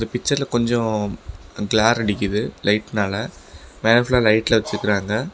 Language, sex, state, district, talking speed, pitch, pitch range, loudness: Tamil, male, Tamil Nadu, Namakkal, 80 wpm, 110 Hz, 105-120 Hz, -20 LUFS